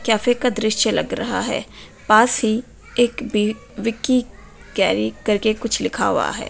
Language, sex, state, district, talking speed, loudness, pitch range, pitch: Hindi, female, West Bengal, Purulia, 165 wpm, -20 LUFS, 215-245 Hz, 225 Hz